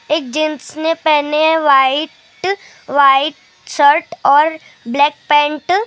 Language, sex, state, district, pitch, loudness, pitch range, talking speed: Hindi, male, Maharashtra, Gondia, 300 Hz, -14 LUFS, 285-320 Hz, 135 wpm